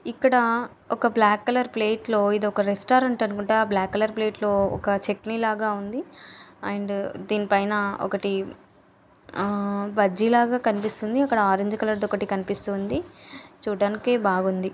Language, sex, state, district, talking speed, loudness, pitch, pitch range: Telugu, female, Telangana, Nalgonda, 130 wpm, -24 LUFS, 210 Hz, 200-225 Hz